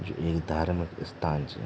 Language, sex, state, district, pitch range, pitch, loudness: Garhwali, male, Uttarakhand, Tehri Garhwal, 75-85 Hz, 80 Hz, -31 LUFS